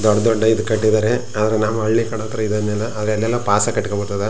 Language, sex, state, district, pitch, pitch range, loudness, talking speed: Kannada, male, Karnataka, Chamarajanagar, 110 Hz, 105-110 Hz, -18 LUFS, 195 wpm